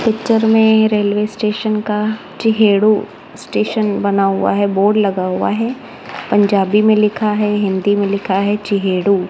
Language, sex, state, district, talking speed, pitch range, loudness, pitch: Hindi, female, Punjab, Kapurthala, 155 wpm, 200-215 Hz, -15 LUFS, 210 Hz